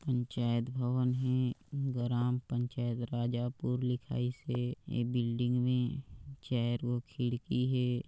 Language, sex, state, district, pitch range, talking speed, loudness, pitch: Chhattisgarhi, male, Chhattisgarh, Sarguja, 120-125 Hz, 120 wpm, -34 LUFS, 125 Hz